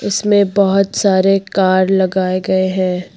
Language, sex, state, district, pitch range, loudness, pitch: Hindi, female, Uttar Pradesh, Lucknow, 185-195 Hz, -14 LUFS, 190 Hz